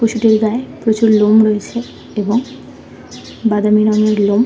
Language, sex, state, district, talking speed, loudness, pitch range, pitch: Bengali, male, West Bengal, Kolkata, 120 wpm, -14 LUFS, 210-230 Hz, 215 Hz